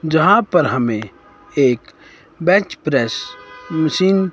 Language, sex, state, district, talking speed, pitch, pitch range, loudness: Hindi, male, Himachal Pradesh, Shimla, 110 wpm, 160 Hz, 135-195 Hz, -17 LUFS